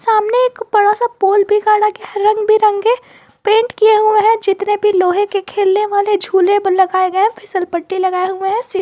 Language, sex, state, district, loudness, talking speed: Hindi, female, Jharkhand, Garhwa, -14 LUFS, 215 wpm